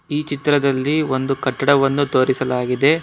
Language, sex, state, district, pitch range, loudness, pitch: Kannada, male, Karnataka, Bangalore, 130-145 Hz, -18 LUFS, 135 Hz